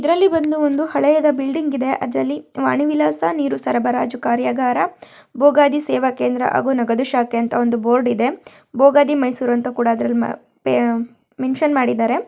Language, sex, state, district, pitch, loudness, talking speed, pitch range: Kannada, female, Karnataka, Mysore, 245 Hz, -18 LUFS, 130 wpm, 230-285 Hz